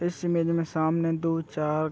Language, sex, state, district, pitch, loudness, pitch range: Hindi, male, Chhattisgarh, Raigarh, 165 Hz, -27 LUFS, 160-170 Hz